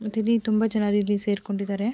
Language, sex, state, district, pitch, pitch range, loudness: Kannada, female, Karnataka, Mysore, 210 Hz, 205-220 Hz, -24 LUFS